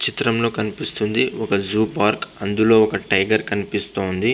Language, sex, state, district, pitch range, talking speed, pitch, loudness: Telugu, male, Andhra Pradesh, Visakhapatnam, 100-115 Hz, 140 wpm, 110 Hz, -18 LUFS